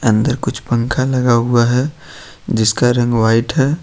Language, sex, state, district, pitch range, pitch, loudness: Hindi, male, Jharkhand, Ranchi, 115-130 Hz, 120 Hz, -15 LUFS